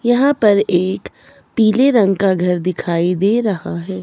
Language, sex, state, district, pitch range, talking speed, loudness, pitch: Hindi, female, Himachal Pradesh, Shimla, 180-225 Hz, 165 wpm, -15 LUFS, 195 Hz